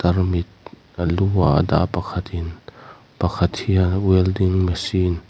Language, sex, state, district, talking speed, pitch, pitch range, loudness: Mizo, male, Mizoram, Aizawl, 135 wpm, 90 Hz, 85-95 Hz, -20 LUFS